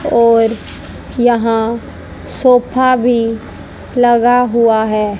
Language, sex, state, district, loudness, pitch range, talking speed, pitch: Hindi, female, Haryana, Jhajjar, -12 LUFS, 225-245 Hz, 80 wpm, 235 Hz